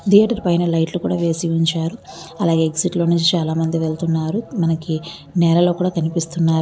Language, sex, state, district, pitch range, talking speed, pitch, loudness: Telugu, male, Andhra Pradesh, Visakhapatnam, 165-175 Hz, 145 wpm, 170 Hz, -19 LUFS